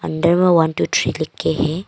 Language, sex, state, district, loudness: Hindi, female, Arunachal Pradesh, Longding, -17 LUFS